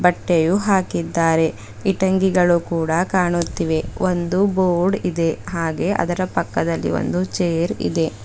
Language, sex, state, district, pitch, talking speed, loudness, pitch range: Kannada, female, Karnataka, Bidar, 175 Hz, 100 wpm, -19 LUFS, 165-185 Hz